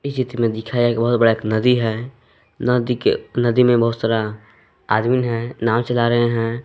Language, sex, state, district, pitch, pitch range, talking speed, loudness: Hindi, male, Jharkhand, Palamu, 120 Hz, 115-120 Hz, 190 wpm, -19 LUFS